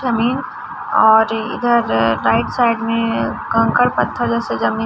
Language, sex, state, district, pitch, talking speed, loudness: Hindi, male, Chhattisgarh, Raipur, 230 Hz, 125 wpm, -16 LUFS